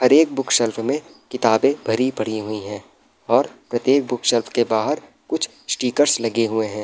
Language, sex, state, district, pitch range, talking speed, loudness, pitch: Hindi, male, Bihar, Araria, 110-135 Hz, 165 wpm, -20 LUFS, 120 Hz